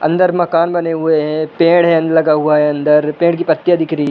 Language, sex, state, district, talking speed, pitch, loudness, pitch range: Hindi, male, Uttar Pradesh, Budaun, 250 wpm, 160 Hz, -13 LUFS, 150-170 Hz